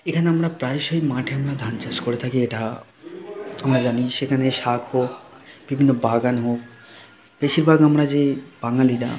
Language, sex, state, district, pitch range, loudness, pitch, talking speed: Bengali, male, West Bengal, Jhargram, 120-150 Hz, -21 LUFS, 130 Hz, 165 wpm